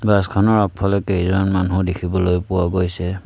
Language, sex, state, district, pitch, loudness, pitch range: Assamese, male, Assam, Sonitpur, 95 Hz, -18 LUFS, 90-100 Hz